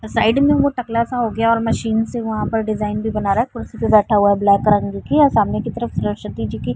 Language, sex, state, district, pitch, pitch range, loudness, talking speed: Hindi, female, Bihar, Vaishali, 220 Hz, 205-230 Hz, -18 LUFS, 310 wpm